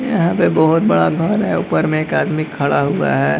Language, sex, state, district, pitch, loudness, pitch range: Hindi, male, Bihar, Gaya, 165 Hz, -16 LUFS, 155-200 Hz